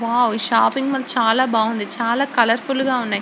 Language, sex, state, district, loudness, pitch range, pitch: Telugu, female, Andhra Pradesh, Srikakulam, -18 LUFS, 225-260 Hz, 235 Hz